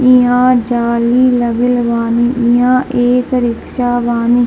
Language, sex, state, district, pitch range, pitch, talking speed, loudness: Hindi, female, Bihar, Darbhanga, 235-250 Hz, 245 Hz, 135 wpm, -12 LUFS